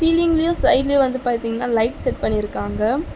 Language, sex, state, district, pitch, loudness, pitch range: Tamil, female, Tamil Nadu, Chennai, 245 Hz, -19 LUFS, 225-305 Hz